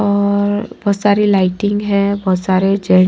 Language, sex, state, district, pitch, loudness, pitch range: Hindi, female, Maharashtra, Washim, 200 Hz, -15 LUFS, 190-205 Hz